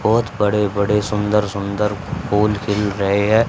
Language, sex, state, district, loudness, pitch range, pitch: Hindi, male, Haryana, Charkhi Dadri, -19 LUFS, 100-105 Hz, 105 Hz